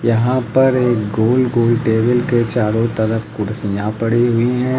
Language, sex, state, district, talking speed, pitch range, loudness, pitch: Hindi, male, Uttar Pradesh, Lucknow, 165 wpm, 110-125 Hz, -16 LUFS, 115 Hz